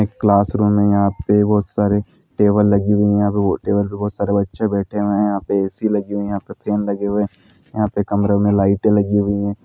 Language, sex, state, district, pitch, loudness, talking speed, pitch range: Hindi, male, Andhra Pradesh, Anantapur, 100 Hz, -17 LUFS, 240 wpm, 100-105 Hz